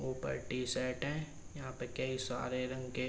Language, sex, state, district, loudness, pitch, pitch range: Hindi, male, Uttar Pradesh, Jalaun, -39 LUFS, 130 Hz, 125-130 Hz